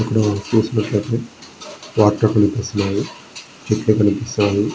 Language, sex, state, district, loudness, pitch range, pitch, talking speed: Telugu, male, Andhra Pradesh, Srikakulam, -18 LUFS, 105-110 Hz, 105 Hz, 90 wpm